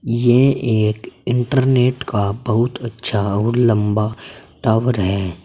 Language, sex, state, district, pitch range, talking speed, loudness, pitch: Hindi, male, Uttar Pradesh, Saharanpur, 105-125 Hz, 110 wpm, -17 LUFS, 115 Hz